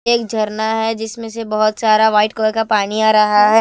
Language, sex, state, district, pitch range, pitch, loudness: Hindi, female, Himachal Pradesh, Shimla, 215-225 Hz, 220 Hz, -15 LUFS